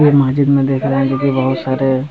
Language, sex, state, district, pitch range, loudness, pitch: Hindi, male, Bihar, Jamui, 130-140 Hz, -15 LUFS, 135 Hz